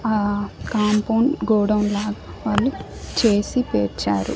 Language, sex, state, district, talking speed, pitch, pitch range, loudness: Telugu, male, Andhra Pradesh, Annamaya, 95 wpm, 210 Hz, 205-220 Hz, -21 LUFS